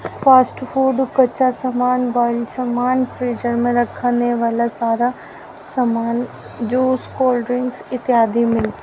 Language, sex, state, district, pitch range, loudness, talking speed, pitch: Hindi, female, Haryana, Rohtak, 235-255 Hz, -18 LUFS, 120 wpm, 245 Hz